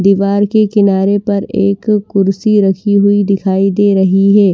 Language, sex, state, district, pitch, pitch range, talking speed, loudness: Hindi, female, Maharashtra, Washim, 200 Hz, 195-205 Hz, 160 wpm, -11 LUFS